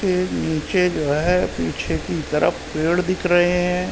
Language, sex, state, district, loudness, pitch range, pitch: Hindi, male, Uttar Pradesh, Ghazipur, -20 LUFS, 165-180 Hz, 180 Hz